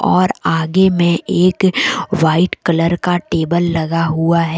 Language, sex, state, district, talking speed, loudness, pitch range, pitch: Hindi, female, Jharkhand, Deoghar, 145 wpm, -15 LUFS, 165-180 Hz, 170 Hz